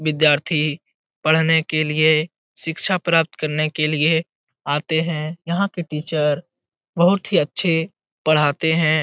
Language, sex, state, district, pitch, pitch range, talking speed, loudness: Hindi, male, Bihar, Lakhisarai, 155 Hz, 155-165 Hz, 125 wpm, -19 LUFS